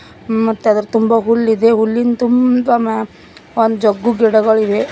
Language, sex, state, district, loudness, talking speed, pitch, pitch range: Kannada, female, Karnataka, Koppal, -14 LUFS, 135 wpm, 225 Hz, 220-235 Hz